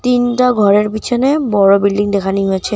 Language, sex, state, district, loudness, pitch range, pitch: Bengali, female, Assam, Kamrup Metropolitan, -13 LUFS, 200-245 Hz, 210 Hz